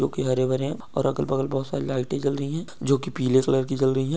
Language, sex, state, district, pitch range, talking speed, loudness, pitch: Hindi, male, Bihar, Supaul, 130-140 Hz, 300 wpm, -25 LUFS, 135 Hz